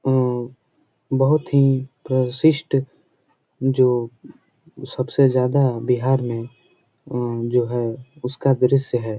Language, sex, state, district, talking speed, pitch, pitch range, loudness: Hindi, male, Bihar, Jahanabad, 100 wpm, 130 Hz, 120-135 Hz, -20 LUFS